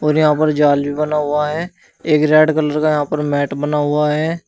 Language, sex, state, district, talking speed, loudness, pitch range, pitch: Hindi, male, Uttar Pradesh, Shamli, 240 wpm, -16 LUFS, 150-155 Hz, 150 Hz